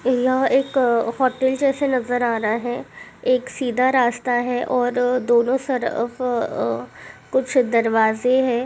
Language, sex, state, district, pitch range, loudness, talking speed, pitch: Hindi, female, Uttar Pradesh, Hamirpur, 240-260 Hz, -20 LUFS, 140 wpm, 250 Hz